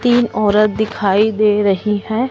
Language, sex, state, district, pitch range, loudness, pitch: Hindi, male, Chandigarh, Chandigarh, 210-220 Hz, -15 LUFS, 215 Hz